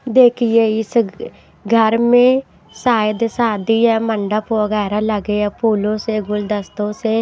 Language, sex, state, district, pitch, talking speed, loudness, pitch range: Hindi, female, Maharashtra, Washim, 220 Hz, 125 wpm, -16 LUFS, 210-230 Hz